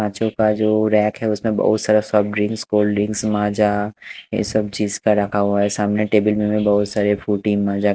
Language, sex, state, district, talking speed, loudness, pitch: Hindi, male, Haryana, Charkhi Dadri, 205 wpm, -19 LUFS, 105 Hz